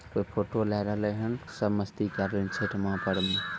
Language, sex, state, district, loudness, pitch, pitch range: Maithili, male, Bihar, Sitamarhi, -30 LUFS, 105 Hz, 95-105 Hz